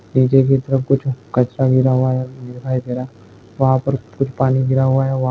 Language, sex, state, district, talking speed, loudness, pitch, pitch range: Hindi, male, Goa, North and South Goa, 190 wpm, -17 LUFS, 130 Hz, 125-135 Hz